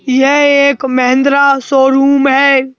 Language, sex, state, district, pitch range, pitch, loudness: Hindi, male, Madhya Pradesh, Bhopal, 265-280 Hz, 275 Hz, -9 LUFS